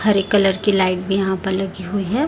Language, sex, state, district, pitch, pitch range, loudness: Hindi, female, Chhattisgarh, Raipur, 195 Hz, 190-200 Hz, -18 LUFS